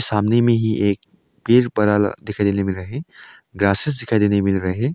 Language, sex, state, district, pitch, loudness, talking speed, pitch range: Hindi, male, Arunachal Pradesh, Longding, 105 Hz, -19 LUFS, 220 wpm, 100-120 Hz